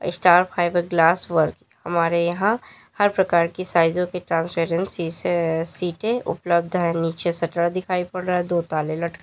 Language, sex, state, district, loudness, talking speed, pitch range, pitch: Hindi, female, Uttar Pradesh, Lalitpur, -22 LUFS, 160 wpm, 170-180 Hz, 175 Hz